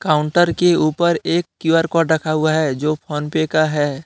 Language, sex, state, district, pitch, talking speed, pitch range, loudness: Hindi, male, Jharkhand, Deoghar, 155 Hz, 205 wpm, 155-165 Hz, -17 LUFS